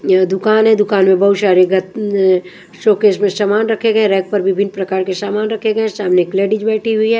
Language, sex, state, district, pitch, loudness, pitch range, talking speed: Hindi, female, Punjab, Kapurthala, 200 Hz, -14 LUFS, 190-215 Hz, 225 wpm